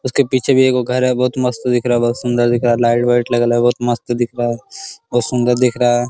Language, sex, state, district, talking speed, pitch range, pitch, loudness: Hindi, male, Bihar, Araria, 295 wpm, 120-125 Hz, 120 Hz, -16 LUFS